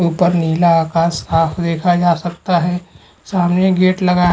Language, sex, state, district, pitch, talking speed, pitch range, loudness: Hindi, male, Chhattisgarh, Bastar, 175 Hz, 180 wpm, 170-180 Hz, -15 LUFS